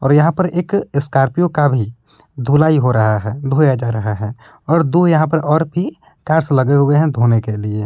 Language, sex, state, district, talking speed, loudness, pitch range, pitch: Hindi, male, Jharkhand, Palamu, 215 wpm, -15 LUFS, 120-160 Hz, 140 Hz